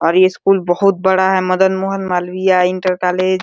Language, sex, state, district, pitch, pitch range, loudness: Hindi, female, Uttar Pradesh, Deoria, 185 Hz, 180-190 Hz, -14 LUFS